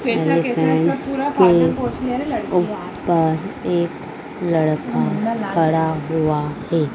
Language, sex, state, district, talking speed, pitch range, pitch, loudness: Hindi, female, Madhya Pradesh, Dhar, 60 wpm, 160-215 Hz, 170 Hz, -19 LUFS